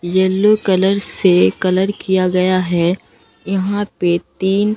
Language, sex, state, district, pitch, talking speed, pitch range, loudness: Hindi, female, Bihar, Katihar, 190 Hz, 125 wpm, 180-200 Hz, -16 LUFS